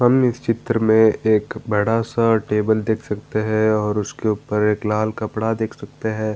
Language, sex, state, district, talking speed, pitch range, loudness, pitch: Hindi, male, Bihar, Gaya, 180 wpm, 105-115 Hz, -20 LUFS, 110 Hz